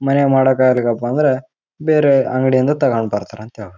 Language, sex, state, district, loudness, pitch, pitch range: Kannada, male, Karnataka, Raichur, -15 LUFS, 130 Hz, 120-135 Hz